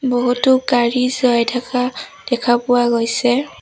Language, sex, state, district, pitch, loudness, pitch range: Assamese, female, Assam, Sonitpur, 245 Hz, -16 LUFS, 240-255 Hz